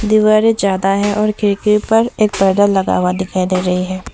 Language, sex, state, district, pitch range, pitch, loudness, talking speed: Hindi, female, Assam, Sonitpur, 185-215 Hz, 205 Hz, -14 LUFS, 205 wpm